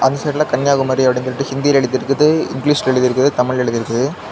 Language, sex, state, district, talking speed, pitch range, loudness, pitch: Tamil, male, Tamil Nadu, Kanyakumari, 180 wpm, 125-145 Hz, -16 LUFS, 135 Hz